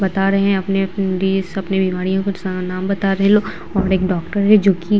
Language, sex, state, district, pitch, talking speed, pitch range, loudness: Hindi, female, Bihar, Vaishali, 195 Hz, 250 wpm, 190-195 Hz, -17 LUFS